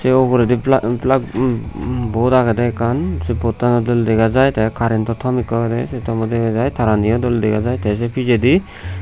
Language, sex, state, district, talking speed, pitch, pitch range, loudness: Chakma, male, Tripura, Unakoti, 220 wpm, 115 Hz, 110-125 Hz, -17 LUFS